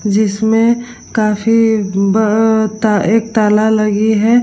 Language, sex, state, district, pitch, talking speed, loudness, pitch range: Hindi, female, Bihar, Vaishali, 220 Hz, 110 wpm, -13 LUFS, 210-225 Hz